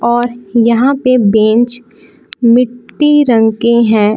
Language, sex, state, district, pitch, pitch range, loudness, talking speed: Hindi, female, Jharkhand, Palamu, 235 Hz, 225-245 Hz, -11 LUFS, 115 wpm